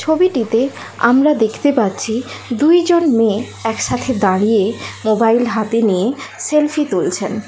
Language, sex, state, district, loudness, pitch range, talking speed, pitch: Bengali, female, West Bengal, Kolkata, -16 LUFS, 220-285 Hz, 105 wpm, 230 Hz